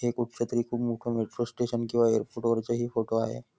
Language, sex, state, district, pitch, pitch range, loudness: Marathi, male, Maharashtra, Nagpur, 120 Hz, 115-120 Hz, -29 LUFS